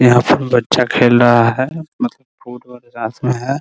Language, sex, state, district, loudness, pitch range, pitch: Hindi, male, Bihar, Muzaffarpur, -14 LUFS, 120-130 Hz, 125 Hz